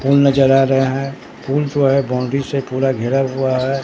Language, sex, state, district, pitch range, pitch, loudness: Hindi, male, Bihar, Katihar, 130-140 Hz, 135 Hz, -16 LUFS